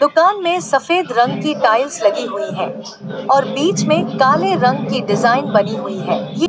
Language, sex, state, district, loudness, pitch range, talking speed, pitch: Hindi, female, Uttar Pradesh, Lalitpur, -16 LUFS, 270-345 Hz, 165 wpm, 300 Hz